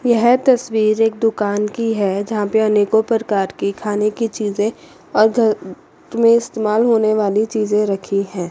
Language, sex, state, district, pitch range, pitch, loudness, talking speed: Hindi, female, Chandigarh, Chandigarh, 205-225 Hz, 215 Hz, -17 LUFS, 160 wpm